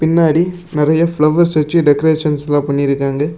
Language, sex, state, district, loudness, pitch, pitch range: Tamil, male, Tamil Nadu, Namakkal, -14 LUFS, 155 Hz, 145-165 Hz